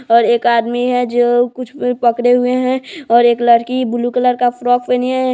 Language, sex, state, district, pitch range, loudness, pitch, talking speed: Hindi, female, Bihar, Sitamarhi, 240-250 Hz, -14 LUFS, 245 Hz, 200 wpm